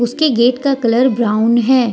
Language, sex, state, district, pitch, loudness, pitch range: Hindi, female, Jharkhand, Deoghar, 240 Hz, -14 LUFS, 235-260 Hz